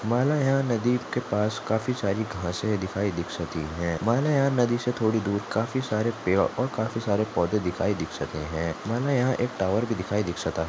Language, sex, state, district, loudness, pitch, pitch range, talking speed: Hindi, male, Maharashtra, Aurangabad, -26 LUFS, 110 Hz, 90-120 Hz, 185 wpm